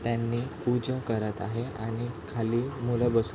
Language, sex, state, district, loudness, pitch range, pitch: Marathi, male, Maharashtra, Chandrapur, -30 LUFS, 115-120 Hz, 120 Hz